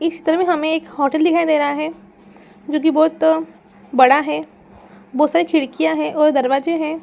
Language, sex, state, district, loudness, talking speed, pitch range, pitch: Hindi, female, Bihar, Saran, -17 LUFS, 195 wpm, 285-320 Hz, 310 Hz